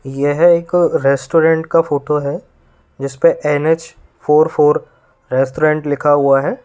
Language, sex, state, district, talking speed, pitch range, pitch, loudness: Hindi, male, Uttar Pradesh, Lalitpur, 125 wpm, 135-160 Hz, 150 Hz, -14 LUFS